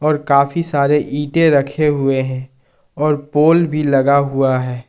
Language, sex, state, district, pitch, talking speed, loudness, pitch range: Hindi, male, Jharkhand, Palamu, 145 Hz, 160 wpm, -15 LUFS, 135-150 Hz